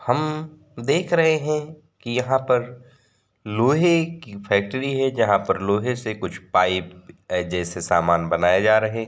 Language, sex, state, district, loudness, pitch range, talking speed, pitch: Hindi, male, Uttar Pradesh, Varanasi, -21 LUFS, 95-135 Hz, 160 wpm, 115 Hz